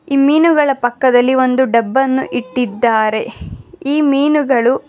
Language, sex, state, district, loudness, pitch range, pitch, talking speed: Kannada, female, Karnataka, Bangalore, -14 LUFS, 245-280 Hz, 260 Hz, 110 wpm